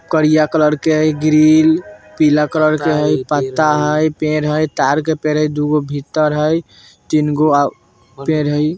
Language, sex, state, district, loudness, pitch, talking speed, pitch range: Bajjika, male, Bihar, Vaishali, -15 LUFS, 150 Hz, 185 wpm, 150-155 Hz